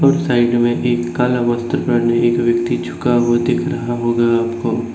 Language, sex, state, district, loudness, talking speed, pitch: Hindi, male, Bihar, Patna, -16 LUFS, 180 wpm, 120 Hz